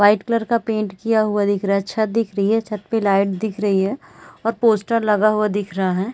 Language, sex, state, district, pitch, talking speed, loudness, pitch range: Hindi, female, Chhattisgarh, Raigarh, 210 Hz, 255 wpm, -19 LUFS, 200-225 Hz